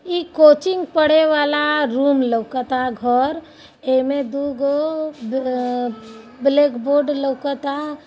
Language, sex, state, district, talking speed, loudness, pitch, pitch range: Hindi, female, Bihar, Gopalganj, 110 wpm, -18 LUFS, 280 Hz, 255-300 Hz